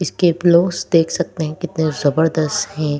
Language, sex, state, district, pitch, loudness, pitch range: Hindi, female, Delhi, New Delhi, 160 Hz, -17 LUFS, 155-175 Hz